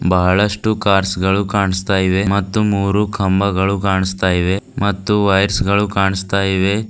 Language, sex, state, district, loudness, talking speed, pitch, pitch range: Kannada, female, Karnataka, Bidar, -16 LUFS, 130 wpm, 100 Hz, 95-100 Hz